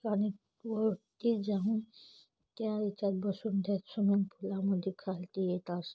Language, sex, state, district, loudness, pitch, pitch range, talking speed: Marathi, female, Maharashtra, Chandrapur, -34 LUFS, 200 Hz, 195-215 Hz, 130 wpm